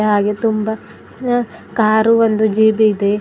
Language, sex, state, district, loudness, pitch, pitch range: Kannada, female, Karnataka, Bidar, -15 LUFS, 220 Hz, 210-225 Hz